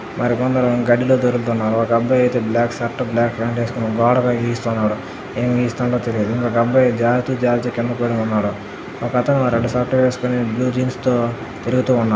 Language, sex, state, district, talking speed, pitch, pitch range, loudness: Telugu, male, Karnataka, Dharwad, 155 wpm, 120 Hz, 115-125 Hz, -18 LUFS